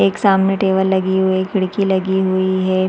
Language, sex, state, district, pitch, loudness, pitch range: Hindi, female, Chhattisgarh, Balrampur, 190 Hz, -16 LUFS, 185-190 Hz